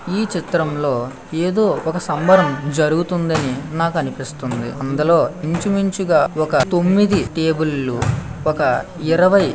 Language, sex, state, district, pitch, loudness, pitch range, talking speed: Telugu, male, Andhra Pradesh, Visakhapatnam, 160 Hz, -18 LUFS, 145-180 Hz, 120 wpm